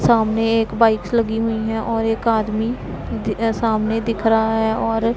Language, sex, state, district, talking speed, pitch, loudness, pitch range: Hindi, female, Punjab, Pathankot, 165 wpm, 225 Hz, -19 LUFS, 220-225 Hz